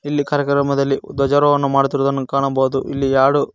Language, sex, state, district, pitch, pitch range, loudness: Kannada, male, Karnataka, Koppal, 140 Hz, 135-145 Hz, -17 LUFS